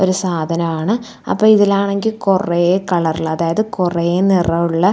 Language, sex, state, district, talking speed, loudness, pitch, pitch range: Malayalam, female, Kerala, Thiruvananthapuram, 110 wpm, -16 LUFS, 185 Hz, 170-200 Hz